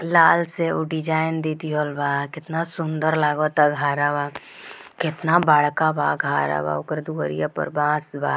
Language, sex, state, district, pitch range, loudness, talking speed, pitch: Bhojpuri, female, Bihar, Gopalganj, 145-160 Hz, -22 LUFS, 145 wpm, 150 Hz